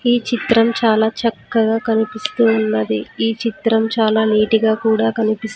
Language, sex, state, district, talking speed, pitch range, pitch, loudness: Telugu, female, Andhra Pradesh, Sri Satya Sai, 140 wpm, 220-230 Hz, 220 Hz, -17 LUFS